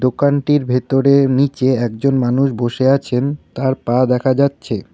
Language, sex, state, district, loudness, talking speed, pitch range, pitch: Bengali, male, West Bengal, Cooch Behar, -16 LUFS, 145 wpm, 125-140 Hz, 130 Hz